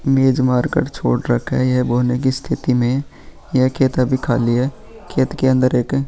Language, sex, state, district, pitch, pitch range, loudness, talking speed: Hindi, male, Bihar, Vaishali, 130 Hz, 125-135 Hz, -18 LUFS, 205 wpm